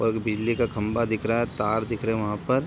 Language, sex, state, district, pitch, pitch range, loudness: Hindi, male, Bihar, Sitamarhi, 115 Hz, 110-115 Hz, -26 LUFS